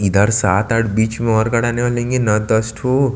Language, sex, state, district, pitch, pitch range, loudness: Hindi, male, Chhattisgarh, Sukma, 115 Hz, 105-120 Hz, -16 LUFS